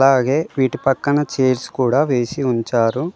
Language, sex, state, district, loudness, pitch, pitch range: Telugu, male, Telangana, Mahabubabad, -18 LUFS, 135 Hz, 125-145 Hz